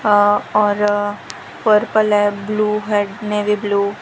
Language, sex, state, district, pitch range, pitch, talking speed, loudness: Hindi, female, Gujarat, Valsad, 205-210 Hz, 210 Hz, 135 wpm, -17 LUFS